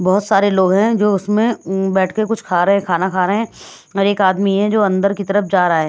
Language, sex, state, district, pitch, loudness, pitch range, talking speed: Hindi, female, Punjab, Pathankot, 195 Hz, -16 LUFS, 185-205 Hz, 285 wpm